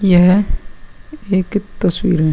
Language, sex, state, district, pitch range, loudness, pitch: Hindi, male, Uttar Pradesh, Muzaffarnagar, 180-205 Hz, -15 LUFS, 190 Hz